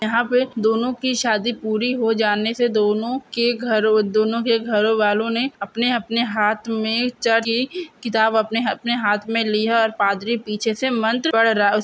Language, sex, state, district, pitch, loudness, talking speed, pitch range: Hindi, female, Bihar, Purnia, 225 Hz, -20 LUFS, 180 wpm, 215-240 Hz